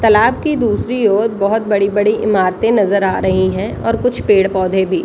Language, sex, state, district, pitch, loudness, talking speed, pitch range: Hindi, female, Bihar, Jahanabad, 205 Hz, -14 LUFS, 200 wpm, 195-225 Hz